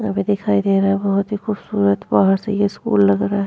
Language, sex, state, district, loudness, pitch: Hindi, female, Uttar Pradesh, Muzaffarnagar, -18 LUFS, 195 Hz